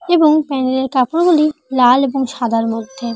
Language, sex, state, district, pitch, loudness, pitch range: Bengali, female, West Bengal, Jalpaiguri, 265 Hz, -15 LUFS, 245-305 Hz